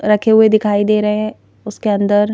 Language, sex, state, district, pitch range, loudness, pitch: Hindi, female, Madhya Pradesh, Bhopal, 205-215 Hz, -14 LUFS, 210 Hz